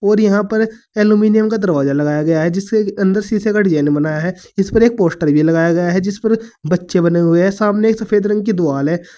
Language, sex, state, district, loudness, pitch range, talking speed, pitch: Hindi, male, Uttar Pradesh, Saharanpur, -15 LUFS, 170-215 Hz, 220 wpm, 195 Hz